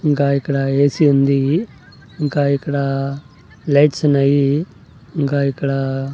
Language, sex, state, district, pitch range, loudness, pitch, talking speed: Telugu, male, Andhra Pradesh, Annamaya, 135-145 Hz, -17 LUFS, 140 Hz, 100 wpm